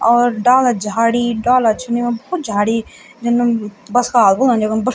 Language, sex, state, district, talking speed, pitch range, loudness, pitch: Garhwali, female, Uttarakhand, Tehri Garhwal, 180 wpm, 220-245 Hz, -15 LUFS, 235 Hz